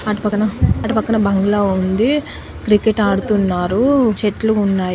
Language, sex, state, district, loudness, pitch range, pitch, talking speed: Telugu, female, Telangana, Karimnagar, -16 LUFS, 195-220 Hz, 210 Hz, 120 wpm